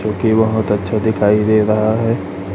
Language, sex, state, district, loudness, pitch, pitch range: Hindi, male, Chhattisgarh, Raipur, -15 LUFS, 110 Hz, 105-110 Hz